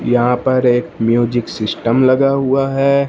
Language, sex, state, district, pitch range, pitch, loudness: Hindi, male, Punjab, Fazilka, 120-135 Hz, 130 Hz, -15 LUFS